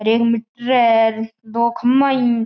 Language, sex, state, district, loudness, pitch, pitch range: Marwari, male, Rajasthan, Churu, -17 LUFS, 235 Hz, 225-245 Hz